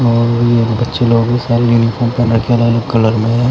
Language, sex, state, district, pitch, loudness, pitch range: Hindi, male, Punjab, Fazilka, 120 Hz, -13 LUFS, 115-120 Hz